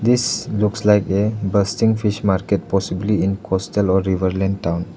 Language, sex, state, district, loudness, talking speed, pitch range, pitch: English, male, Arunachal Pradesh, Lower Dibang Valley, -19 LUFS, 155 wpm, 95-105 Hz, 100 Hz